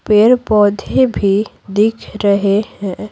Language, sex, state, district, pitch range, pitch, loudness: Hindi, female, Bihar, Patna, 195-210 Hz, 205 Hz, -14 LUFS